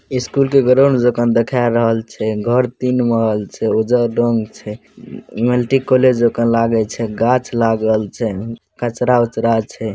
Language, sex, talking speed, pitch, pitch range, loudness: Angika, male, 170 wpm, 115 Hz, 110-125 Hz, -16 LUFS